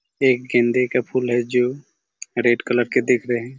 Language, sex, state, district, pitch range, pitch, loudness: Hindi, male, Chhattisgarh, Raigarh, 120-125 Hz, 125 Hz, -20 LUFS